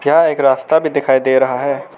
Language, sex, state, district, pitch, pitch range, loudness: Hindi, male, Arunachal Pradesh, Lower Dibang Valley, 140 Hz, 130-155 Hz, -14 LUFS